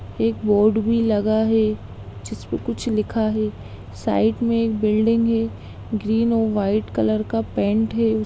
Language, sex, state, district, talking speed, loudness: Hindi, female, Bihar, Sitamarhi, 150 wpm, -21 LUFS